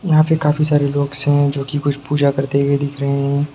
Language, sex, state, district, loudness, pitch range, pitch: Hindi, male, Bihar, Sitamarhi, -17 LUFS, 140-145 Hz, 145 Hz